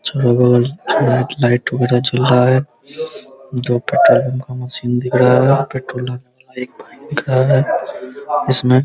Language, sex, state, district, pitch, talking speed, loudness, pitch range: Hindi, male, Bihar, Araria, 130 Hz, 135 wpm, -15 LUFS, 125-135 Hz